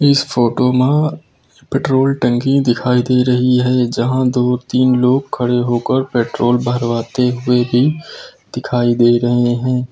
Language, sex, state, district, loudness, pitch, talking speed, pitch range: Hindi, male, Uttar Pradesh, Lucknow, -15 LUFS, 125 Hz, 140 wpm, 120-130 Hz